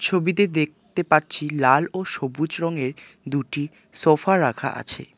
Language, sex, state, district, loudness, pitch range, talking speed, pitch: Bengali, male, West Bengal, Alipurduar, -22 LUFS, 140-180 Hz, 125 wpm, 155 Hz